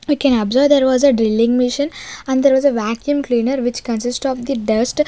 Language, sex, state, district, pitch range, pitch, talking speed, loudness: English, female, Maharashtra, Gondia, 235-280 Hz, 260 Hz, 225 wpm, -16 LUFS